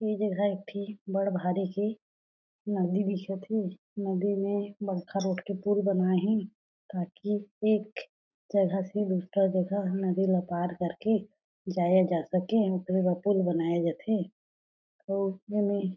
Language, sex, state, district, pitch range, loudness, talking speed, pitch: Chhattisgarhi, female, Chhattisgarh, Jashpur, 185-205 Hz, -29 LUFS, 140 wpm, 195 Hz